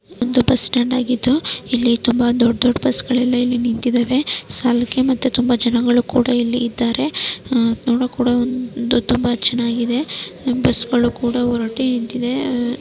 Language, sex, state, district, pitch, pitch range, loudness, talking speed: Kannada, female, Karnataka, Mysore, 245 Hz, 240-250 Hz, -18 LUFS, 130 wpm